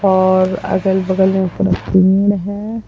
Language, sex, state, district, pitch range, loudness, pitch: Hindi, female, Bihar, Vaishali, 185-200 Hz, -15 LUFS, 190 Hz